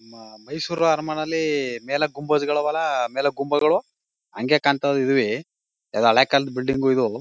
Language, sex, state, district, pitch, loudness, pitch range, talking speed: Kannada, male, Karnataka, Mysore, 140 Hz, -22 LUFS, 130-150 Hz, 140 wpm